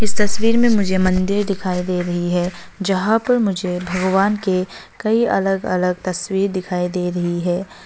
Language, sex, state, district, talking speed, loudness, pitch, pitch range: Hindi, female, Arunachal Pradesh, Longding, 170 wpm, -19 LUFS, 190 Hz, 180-205 Hz